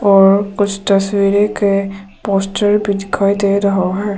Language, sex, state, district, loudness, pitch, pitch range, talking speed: Hindi, female, Arunachal Pradesh, Papum Pare, -14 LUFS, 200 Hz, 195-205 Hz, 130 wpm